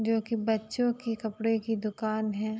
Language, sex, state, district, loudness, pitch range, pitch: Hindi, female, Uttar Pradesh, Gorakhpur, -30 LUFS, 215-225 Hz, 220 Hz